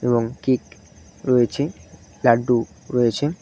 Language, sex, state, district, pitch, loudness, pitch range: Bengali, male, West Bengal, Cooch Behar, 120 Hz, -21 LUFS, 100-130 Hz